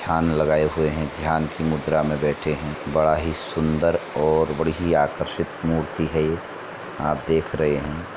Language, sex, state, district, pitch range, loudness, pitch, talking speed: Hindi, male, Uttar Pradesh, Etah, 75-80 Hz, -23 LUFS, 80 Hz, 175 wpm